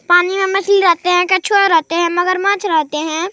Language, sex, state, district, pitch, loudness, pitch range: Hindi, male, Chhattisgarh, Sarguja, 355 Hz, -14 LUFS, 340-390 Hz